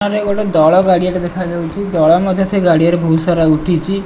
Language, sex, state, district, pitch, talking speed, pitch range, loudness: Odia, male, Odisha, Malkangiri, 180 Hz, 205 wpm, 170-195 Hz, -13 LUFS